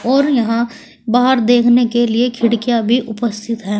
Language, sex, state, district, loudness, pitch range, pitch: Hindi, female, Uttar Pradesh, Saharanpur, -15 LUFS, 230-245 Hz, 240 Hz